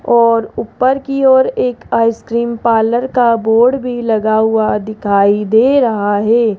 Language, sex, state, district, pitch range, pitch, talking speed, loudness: Hindi, female, Rajasthan, Jaipur, 220-245 Hz, 230 Hz, 145 wpm, -13 LUFS